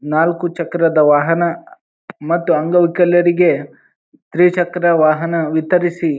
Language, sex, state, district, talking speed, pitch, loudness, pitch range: Kannada, male, Karnataka, Bijapur, 95 wpm, 170 Hz, -15 LUFS, 160-175 Hz